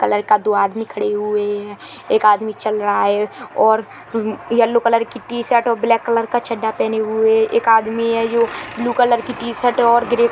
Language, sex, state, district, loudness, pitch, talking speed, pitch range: Hindi, male, Uttar Pradesh, Jalaun, -17 LUFS, 225 Hz, 190 wpm, 215-235 Hz